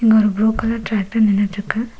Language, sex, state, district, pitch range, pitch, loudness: Tamil, female, Tamil Nadu, Nilgiris, 205-225 Hz, 220 Hz, -18 LUFS